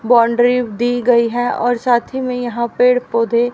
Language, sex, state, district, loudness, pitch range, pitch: Hindi, female, Haryana, Rohtak, -16 LUFS, 235-245 Hz, 245 Hz